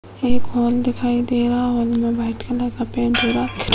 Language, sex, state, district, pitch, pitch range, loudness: Hindi, female, Uttar Pradesh, Hamirpur, 240 Hz, 235-245 Hz, -19 LUFS